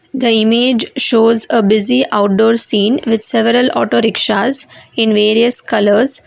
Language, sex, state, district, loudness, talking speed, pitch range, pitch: English, female, Karnataka, Bangalore, -12 LUFS, 135 wpm, 220-245 Hz, 230 Hz